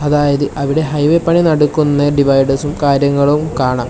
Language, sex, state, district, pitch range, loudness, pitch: Malayalam, male, Kerala, Kasaragod, 140-150 Hz, -13 LUFS, 145 Hz